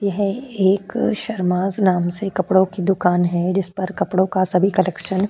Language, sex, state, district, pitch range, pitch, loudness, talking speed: Hindi, female, Uttar Pradesh, Jalaun, 180-195 Hz, 190 Hz, -19 LUFS, 180 wpm